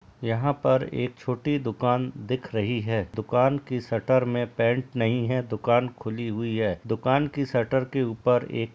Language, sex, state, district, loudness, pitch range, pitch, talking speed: Hindi, male, Bihar, Gaya, -26 LUFS, 115-130 Hz, 120 Hz, 180 wpm